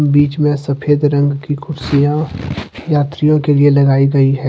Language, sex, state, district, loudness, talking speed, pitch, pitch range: Hindi, male, Jharkhand, Deoghar, -14 LUFS, 160 wpm, 145 Hz, 140-150 Hz